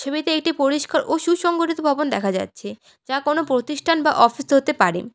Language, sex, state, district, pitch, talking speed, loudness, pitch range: Bengali, female, West Bengal, Alipurduar, 300 Hz, 175 wpm, -20 LUFS, 275-320 Hz